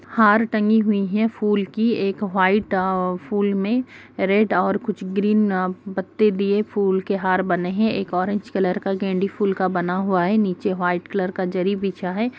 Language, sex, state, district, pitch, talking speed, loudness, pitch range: Hindi, female, Uttar Pradesh, Jyotiba Phule Nagar, 195 Hz, 200 wpm, -21 LUFS, 185-210 Hz